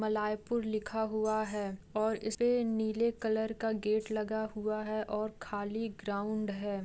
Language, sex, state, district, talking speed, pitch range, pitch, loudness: Hindi, female, Bihar, Jamui, 160 wpm, 210-220 Hz, 215 Hz, -34 LUFS